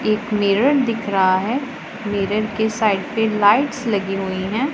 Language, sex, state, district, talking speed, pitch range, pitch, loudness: Hindi, female, Punjab, Pathankot, 165 wpm, 200-235 Hz, 215 Hz, -19 LUFS